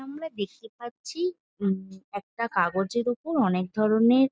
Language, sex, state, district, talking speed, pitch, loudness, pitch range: Bengali, female, West Bengal, Jhargram, 125 wpm, 225 Hz, -27 LUFS, 195-265 Hz